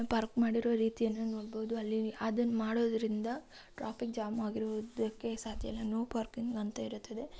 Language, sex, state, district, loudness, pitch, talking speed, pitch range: Kannada, female, Karnataka, Raichur, -36 LUFS, 225 Hz, 115 wpm, 220-230 Hz